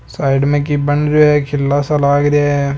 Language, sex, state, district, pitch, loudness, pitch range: Marwari, male, Rajasthan, Nagaur, 145 Hz, -14 LUFS, 140-145 Hz